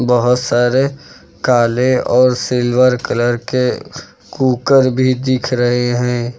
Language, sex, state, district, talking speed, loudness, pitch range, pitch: Hindi, male, Uttar Pradesh, Lucknow, 115 wpm, -14 LUFS, 120-130 Hz, 125 Hz